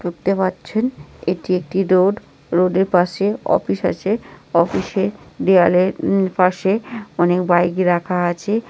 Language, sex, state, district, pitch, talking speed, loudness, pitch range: Bengali, female, West Bengal, North 24 Parganas, 185 Hz, 115 wpm, -18 LUFS, 180-195 Hz